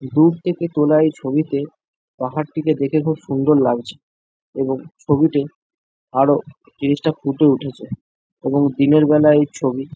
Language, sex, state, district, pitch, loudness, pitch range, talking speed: Bengali, male, West Bengal, Jalpaiguri, 150 Hz, -18 LUFS, 140-155 Hz, 125 wpm